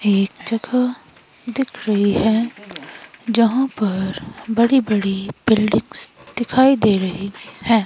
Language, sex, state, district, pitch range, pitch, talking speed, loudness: Hindi, female, Himachal Pradesh, Shimla, 205-240 Hz, 220 Hz, 105 wpm, -19 LUFS